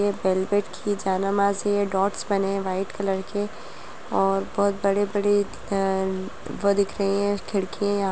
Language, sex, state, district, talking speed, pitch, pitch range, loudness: Hindi, female, Bihar, Muzaffarpur, 140 wpm, 200 Hz, 195-205 Hz, -24 LUFS